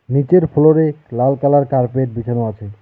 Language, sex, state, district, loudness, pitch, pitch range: Bengali, male, West Bengal, Alipurduar, -15 LUFS, 135 Hz, 120-145 Hz